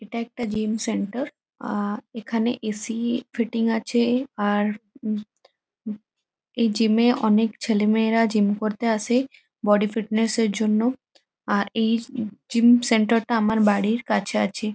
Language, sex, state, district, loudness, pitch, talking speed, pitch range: Bengali, female, West Bengal, Kolkata, -23 LUFS, 225 Hz, 155 wpm, 215-235 Hz